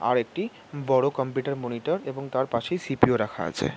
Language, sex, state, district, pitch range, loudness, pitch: Bengali, male, West Bengal, North 24 Parganas, 125-140 Hz, -27 LUFS, 135 Hz